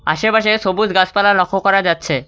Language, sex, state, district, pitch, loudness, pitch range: Bengali, male, West Bengal, Cooch Behar, 195 Hz, -14 LUFS, 175-215 Hz